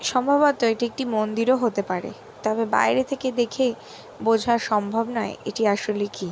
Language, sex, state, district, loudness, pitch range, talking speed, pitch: Bengali, female, West Bengal, Jhargram, -23 LUFS, 215-255 Hz, 150 wpm, 230 Hz